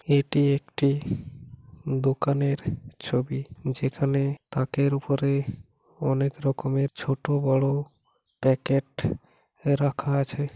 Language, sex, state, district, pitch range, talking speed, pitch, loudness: Bengali, male, West Bengal, Paschim Medinipur, 135-140 Hz, 80 wpm, 140 Hz, -26 LUFS